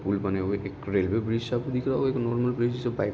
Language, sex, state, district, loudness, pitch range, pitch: Hindi, male, Uttar Pradesh, Ghazipur, -28 LUFS, 100-125 Hz, 120 Hz